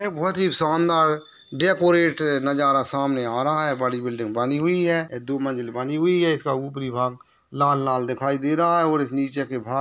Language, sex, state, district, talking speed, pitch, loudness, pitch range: Hindi, male, Maharashtra, Nagpur, 195 wpm, 140 Hz, -22 LUFS, 130-160 Hz